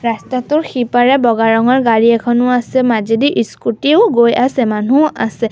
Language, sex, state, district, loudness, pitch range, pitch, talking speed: Assamese, female, Assam, Sonitpur, -13 LUFS, 230-255 Hz, 240 Hz, 140 wpm